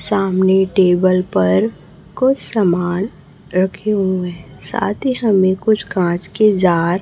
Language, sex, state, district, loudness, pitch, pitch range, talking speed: Hindi, female, Chhattisgarh, Raipur, -16 LUFS, 185 Hz, 175-205 Hz, 130 wpm